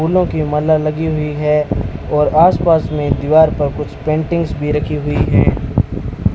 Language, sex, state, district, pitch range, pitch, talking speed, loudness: Hindi, male, Rajasthan, Bikaner, 145-160 Hz, 150 Hz, 170 wpm, -15 LUFS